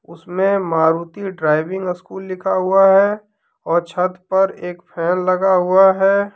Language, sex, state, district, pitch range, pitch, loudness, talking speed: Hindi, male, Jharkhand, Deoghar, 175-195 Hz, 185 Hz, -16 LUFS, 140 wpm